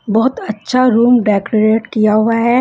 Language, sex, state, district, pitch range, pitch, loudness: Hindi, female, Punjab, Fazilka, 215-240 Hz, 225 Hz, -13 LUFS